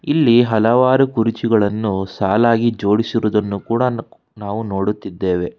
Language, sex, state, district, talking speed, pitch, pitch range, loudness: Kannada, male, Karnataka, Bangalore, 85 wpm, 110 Hz, 100-115 Hz, -17 LUFS